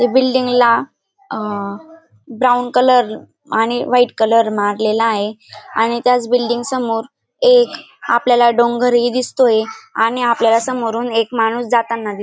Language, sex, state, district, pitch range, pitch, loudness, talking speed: Marathi, female, Maharashtra, Dhule, 225-250 Hz, 235 Hz, -15 LUFS, 125 wpm